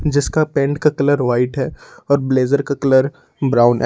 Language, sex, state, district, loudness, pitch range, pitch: Hindi, male, Jharkhand, Ranchi, -17 LUFS, 130-145 Hz, 140 Hz